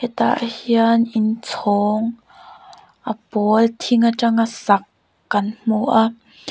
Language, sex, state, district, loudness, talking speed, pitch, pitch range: Mizo, female, Mizoram, Aizawl, -18 LUFS, 110 wpm, 230 Hz, 215-230 Hz